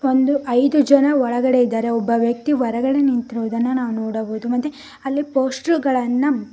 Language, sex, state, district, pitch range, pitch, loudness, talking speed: Kannada, female, Karnataka, Koppal, 235-280 Hz, 255 Hz, -19 LUFS, 155 wpm